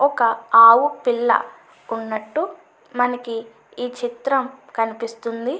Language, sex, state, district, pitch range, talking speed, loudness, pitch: Telugu, female, Andhra Pradesh, Anantapur, 230-265 Hz, 85 wpm, -19 LUFS, 240 Hz